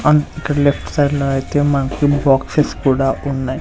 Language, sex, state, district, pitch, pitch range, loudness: Telugu, male, Andhra Pradesh, Sri Satya Sai, 140 Hz, 135-145 Hz, -16 LUFS